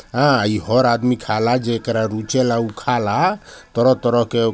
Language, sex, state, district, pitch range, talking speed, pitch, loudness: Bhojpuri, male, Bihar, Gopalganj, 110-125 Hz, 160 wpm, 115 Hz, -18 LUFS